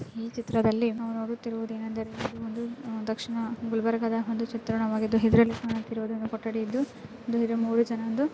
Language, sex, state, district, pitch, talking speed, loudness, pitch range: Kannada, female, Karnataka, Gulbarga, 230 Hz, 95 wpm, -29 LUFS, 225-230 Hz